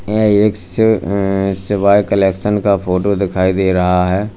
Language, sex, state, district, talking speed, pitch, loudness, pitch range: Hindi, male, Uttar Pradesh, Lalitpur, 165 wpm, 100 Hz, -14 LUFS, 95-105 Hz